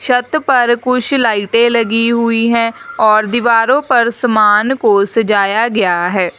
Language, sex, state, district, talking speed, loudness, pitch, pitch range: Hindi, female, Uttar Pradesh, Lalitpur, 140 wpm, -12 LUFS, 230 Hz, 215-245 Hz